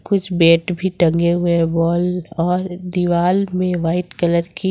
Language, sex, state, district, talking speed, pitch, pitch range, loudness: Hindi, female, Jharkhand, Ranchi, 165 wpm, 175 Hz, 170-180 Hz, -17 LUFS